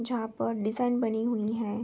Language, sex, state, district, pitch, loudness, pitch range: Hindi, female, Bihar, Begusarai, 225 Hz, -30 LUFS, 220-235 Hz